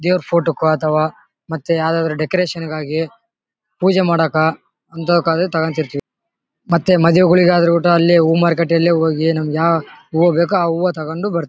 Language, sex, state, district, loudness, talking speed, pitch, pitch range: Kannada, male, Karnataka, Bellary, -16 LUFS, 155 wpm, 165 Hz, 160-175 Hz